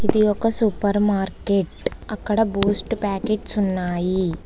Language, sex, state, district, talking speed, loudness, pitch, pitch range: Telugu, female, Telangana, Hyderabad, 110 wpm, -22 LUFS, 205 Hz, 195-215 Hz